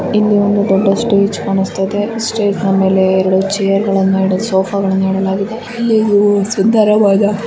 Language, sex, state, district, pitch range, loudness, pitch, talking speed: Kannada, female, Karnataka, Dharwad, 195-210 Hz, -13 LUFS, 200 Hz, 135 wpm